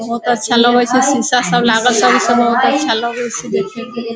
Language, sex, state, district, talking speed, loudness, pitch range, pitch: Hindi, female, Bihar, Sitamarhi, 215 wpm, -13 LUFS, 230-245 Hz, 240 Hz